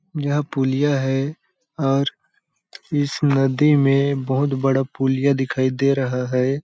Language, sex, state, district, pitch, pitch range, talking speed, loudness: Hindi, male, Chhattisgarh, Balrampur, 135 Hz, 135-145 Hz, 135 wpm, -20 LUFS